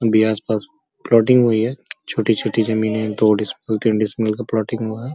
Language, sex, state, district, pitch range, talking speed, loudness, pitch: Hindi, male, Uttar Pradesh, Gorakhpur, 110-115 Hz, 150 wpm, -19 LUFS, 110 Hz